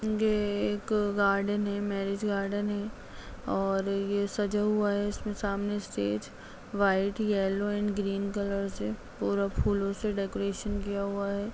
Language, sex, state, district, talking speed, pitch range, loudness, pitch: Hindi, female, Bihar, Begusarai, 145 wpm, 195-205 Hz, -30 LUFS, 200 Hz